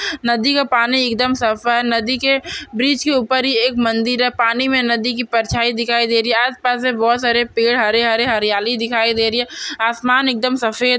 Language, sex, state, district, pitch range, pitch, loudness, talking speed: Hindi, female, Maharashtra, Solapur, 230-255 Hz, 240 Hz, -16 LUFS, 205 wpm